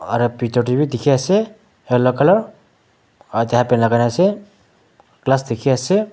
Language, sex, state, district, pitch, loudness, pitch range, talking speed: Nagamese, male, Nagaland, Dimapur, 135 Hz, -17 LUFS, 120-195 Hz, 175 wpm